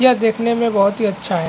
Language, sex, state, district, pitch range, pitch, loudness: Hindi, male, Chhattisgarh, Bastar, 200-235 Hz, 220 Hz, -17 LUFS